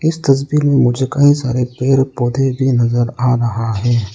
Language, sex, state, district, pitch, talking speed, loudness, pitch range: Hindi, male, Arunachal Pradesh, Lower Dibang Valley, 130 Hz, 185 wpm, -15 LUFS, 120-135 Hz